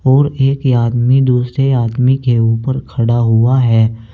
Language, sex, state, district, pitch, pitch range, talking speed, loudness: Hindi, male, Uttar Pradesh, Saharanpur, 125 Hz, 115-130 Hz, 145 wpm, -13 LUFS